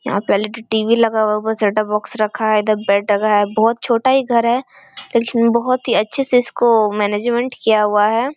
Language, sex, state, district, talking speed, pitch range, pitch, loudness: Hindi, female, Bihar, Vaishali, 220 wpm, 210-240 Hz, 225 Hz, -16 LUFS